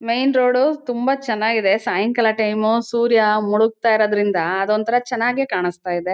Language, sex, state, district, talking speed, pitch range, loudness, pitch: Kannada, female, Karnataka, Chamarajanagar, 135 wpm, 210-240 Hz, -18 LUFS, 225 Hz